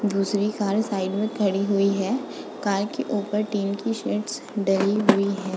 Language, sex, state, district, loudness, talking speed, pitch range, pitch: Hindi, female, Uttar Pradesh, Budaun, -24 LUFS, 175 wpm, 195-210 Hz, 205 Hz